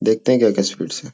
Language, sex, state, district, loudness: Hindi, male, Uttar Pradesh, Jyotiba Phule Nagar, -18 LUFS